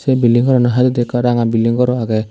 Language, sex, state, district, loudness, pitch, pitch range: Chakma, male, Tripura, Dhalai, -14 LUFS, 120 Hz, 115-125 Hz